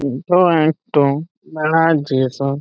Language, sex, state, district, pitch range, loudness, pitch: Hindi, male, Chhattisgarh, Bastar, 140-165 Hz, -16 LUFS, 155 Hz